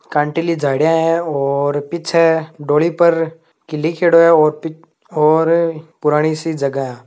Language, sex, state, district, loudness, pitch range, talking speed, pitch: Hindi, male, Rajasthan, Nagaur, -15 LUFS, 150-165 Hz, 145 wpm, 160 Hz